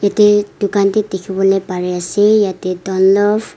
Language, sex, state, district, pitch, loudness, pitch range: Nagamese, female, Nagaland, Kohima, 200 Hz, -14 LUFS, 190-205 Hz